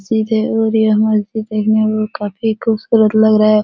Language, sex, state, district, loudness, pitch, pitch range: Hindi, female, Bihar, Supaul, -14 LUFS, 215 Hz, 215-220 Hz